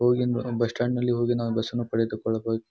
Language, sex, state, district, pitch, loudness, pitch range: Kannada, male, Karnataka, Bijapur, 120 Hz, -26 LUFS, 115-120 Hz